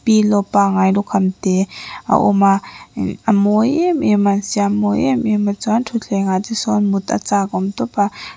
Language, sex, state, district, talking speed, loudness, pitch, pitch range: Mizo, female, Mizoram, Aizawl, 185 wpm, -16 LUFS, 205 Hz, 200-225 Hz